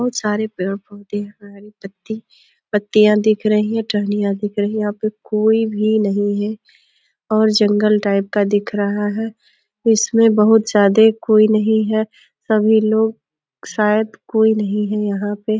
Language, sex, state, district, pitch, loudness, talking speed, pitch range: Hindi, female, Uttar Pradesh, Deoria, 210 Hz, -17 LUFS, 155 wpm, 205-220 Hz